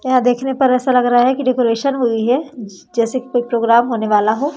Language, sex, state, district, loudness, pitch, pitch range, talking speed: Hindi, female, Madhya Pradesh, Umaria, -16 LUFS, 245 Hz, 230-260 Hz, 235 wpm